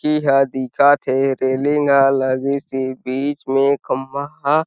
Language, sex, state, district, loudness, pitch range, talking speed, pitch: Chhattisgarhi, male, Chhattisgarh, Sarguja, -18 LUFS, 130-145 Hz, 140 wpm, 135 Hz